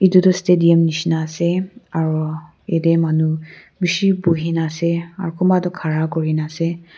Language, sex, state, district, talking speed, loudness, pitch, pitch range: Nagamese, female, Nagaland, Kohima, 145 wpm, -18 LUFS, 165 Hz, 160-180 Hz